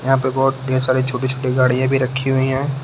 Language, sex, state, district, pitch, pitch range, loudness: Hindi, male, Uttar Pradesh, Lucknow, 130 Hz, 130-135 Hz, -18 LUFS